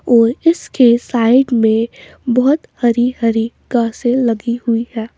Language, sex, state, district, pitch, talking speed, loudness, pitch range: Hindi, female, Bihar, West Champaran, 235 Hz, 115 wpm, -15 LUFS, 230-250 Hz